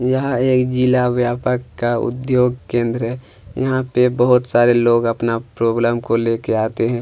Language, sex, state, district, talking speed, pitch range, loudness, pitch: Hindi, male, Chhattisgarh, Kabirdham, 160 wpm, 115-125 Hz, -17 LUFS, 120 Hz